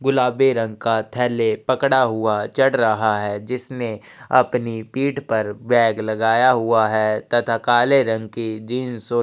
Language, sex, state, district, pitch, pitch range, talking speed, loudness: Hindi, male, Chhattisgarh, Sukma, 115 Hz, 110-125 Hz, 155 wpm, -19 LUFS